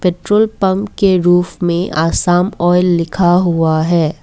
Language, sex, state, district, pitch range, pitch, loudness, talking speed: Hindi, female, Assam, Kamrup Metropolitan, 170-190 Hz, 175 Hz, -13 LUFS, 140 wpm